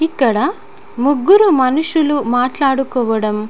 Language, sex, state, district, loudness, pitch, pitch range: Telugu, female, Telangana, Nalgonda, -14 LUFS, 265 Hz, 245-305 Hz